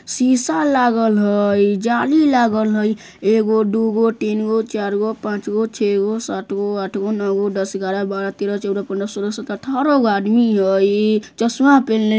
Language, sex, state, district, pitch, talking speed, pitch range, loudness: Bajjika, female, Bihar, Vaishali, 215 Hz, 150 wpm, 200-225 Hz, -17 LUFS